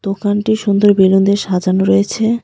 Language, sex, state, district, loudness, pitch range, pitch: Bengali, female, West Bengal, Alipurduar, -13 LUFS, 190-210 Hz, 200 Hz